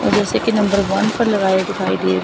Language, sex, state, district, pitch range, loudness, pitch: Hindi, female, Chandigarh, Chandigarh, 190-210 Hz, -17 LUFS, 200 Hz